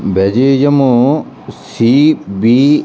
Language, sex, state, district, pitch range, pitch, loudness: Garhwali, male, Uttarakhand, Tehri Garhwal, 115-140 Hz, 130 Hz, -11 LUFS